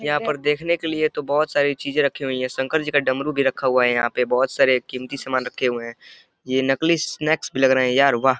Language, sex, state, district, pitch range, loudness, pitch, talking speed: Hindi, male, Uttar Pradesh, Deoria, 130-150 Hz, -21 LUFS, 135 Hz, 280 wpm